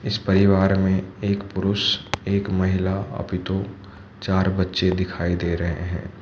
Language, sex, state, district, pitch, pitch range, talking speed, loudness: Hindi, male, Manipur, Imphal West, 95 Hz, 95-100 Hz, 145 wpm, -22 LUFS